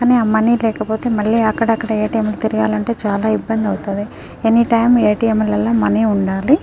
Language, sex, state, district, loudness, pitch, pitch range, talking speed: Telugu, female, Telangana, Nalgonda, -16 LUFS, 220 Hz, 215-230 Hz, 155 wpm